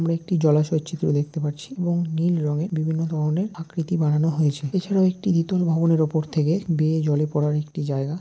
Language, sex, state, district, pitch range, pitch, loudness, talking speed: Bengali, male, West Bengal, Dakshin Dinajpur, 150-170 Hz, 160 Hz, -23 LUFS, 175 wpm